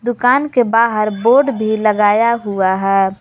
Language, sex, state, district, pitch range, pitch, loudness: Hindi, female, Jharkhand, Garhwa, 205-245 Hz, 220 Hz, -14 LUFS